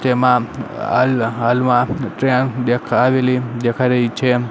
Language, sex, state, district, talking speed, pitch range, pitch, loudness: Gujarati, male, Gujarat, Gandhinagar, 120 wpm, 120-130 Hz, 125 Hz, -17 LUFS